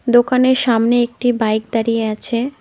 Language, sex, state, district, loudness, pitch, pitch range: Bengali, female, West Bengal, Cooch Behar, -16 LUFS, 240 Hz, 225-245 Hz